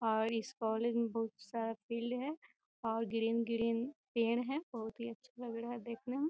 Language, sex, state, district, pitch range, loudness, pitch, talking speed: Hindi, female, Bihar, Gopalganj, 225-245 Hz, -38 LUFS, 230 Hz, 190 wpm